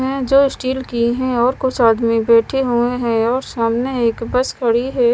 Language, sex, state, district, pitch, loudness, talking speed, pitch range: Hindi, female, Punjab, Kapurthala, 245 Hz, -17 LUFS, 200 wpm, 230-260 Hz